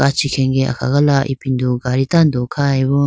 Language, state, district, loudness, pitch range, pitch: Idu Mishmi, Arunachal Pradesh, Lower Dibang Valley, -16 LUFS, 130-140 Hz, 135 Hz